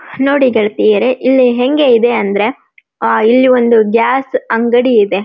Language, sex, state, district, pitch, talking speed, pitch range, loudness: Kannada, female, Karnataka, Dharwad, 240 Hz, 150 wpm, 220-255 Hz, -11 LUFS